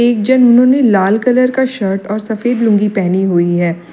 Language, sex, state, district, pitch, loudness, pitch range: Hindi, female, Uttar Pradesh, Lalitpur, 215 Hz, -12 LUFS, 190-245 Hz